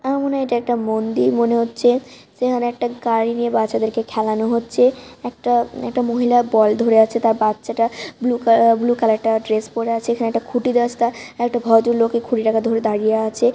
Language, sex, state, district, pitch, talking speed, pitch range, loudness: Bengali, female, West Bengal, Malda, 235 Hz, 195 wpm, 225-240 Hz, -18 LUFS